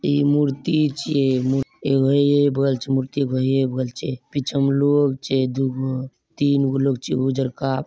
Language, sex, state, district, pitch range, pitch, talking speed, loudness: Angika, male, Bihar, Bhagalpur, 130-140 Hz, 135 Hz, 170 wpm, -21 LUFS